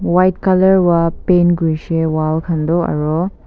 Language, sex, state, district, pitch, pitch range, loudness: Nagamese, female, Nagaland, Kohima, 170 Hz, 160-180 Hz, -15 LUFS